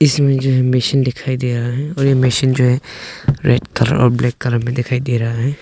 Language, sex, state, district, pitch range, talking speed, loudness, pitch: Hindi, male, Arunachal Pradesh, Longding, 125-135 Hz, 245 wpm, -16 LUFS, 125 Hz